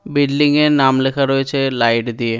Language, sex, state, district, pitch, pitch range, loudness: Bengali, male, West Bengal, Dakshin Dinajpur, 135 Hz, 120-140 Hz, -15 LUFS